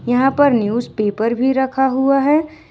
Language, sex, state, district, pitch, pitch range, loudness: Hindi, female, Jharkhand, Ranchi, 265 Hz, 235-275 Hz, -16 LUFS